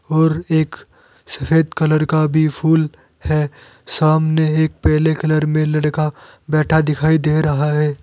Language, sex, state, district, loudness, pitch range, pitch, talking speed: Hindi, male, Uttar Pradesh, Saharanpur, -17 LUFS, 150-160 Hz, 155 Hz, 140 wpm